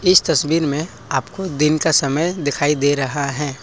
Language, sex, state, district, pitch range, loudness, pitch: Hindi, male, Assam, Kamrup Metropolitan, 140-165 Hz, -18 LUFS, 150 Hz